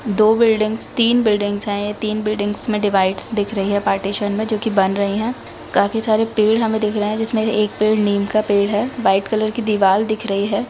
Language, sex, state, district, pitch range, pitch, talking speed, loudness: Hindi, female, Bihar, Darbhanga, 205-220 Hz, 215 Hz, 235 wpm, -18 LUFS